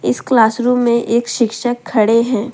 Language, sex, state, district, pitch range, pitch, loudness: Hindi, female, Jharkhand, Deoghar, 225-245 Hz, 235 Hz, -15 LUFS